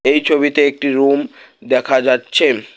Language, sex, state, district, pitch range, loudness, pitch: Bengali, male, West Bengal, Alipurduar, 140-145 Hz, -14 LUFS, 145 Hz